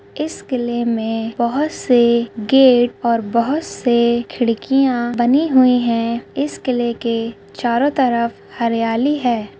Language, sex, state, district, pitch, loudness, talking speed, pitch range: Hindi, female, Rajasthan, Nagaur, 240 Hz, -17 LUFS, 125 wpm, 235-260 Hz